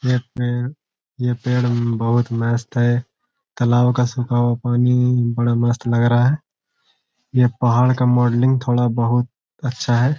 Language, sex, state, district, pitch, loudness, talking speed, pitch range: Hindi, male, Jharkhand, Sahebganj, 120 Hz, -18 LUFS, 160 wpm, 120-125 Hz